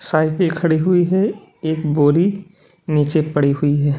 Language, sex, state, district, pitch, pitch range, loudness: Hindi, male, Uttar Pradesh, Lalitpur, 155 Hz, 150-175 Hz, -17 LUFS